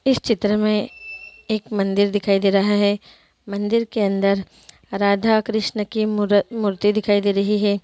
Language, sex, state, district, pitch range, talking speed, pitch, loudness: Hindi, female, Andhra Pradesh, Anantapur, 200-215 Hz, 160 wpm, 205 Hz, -20 LUFS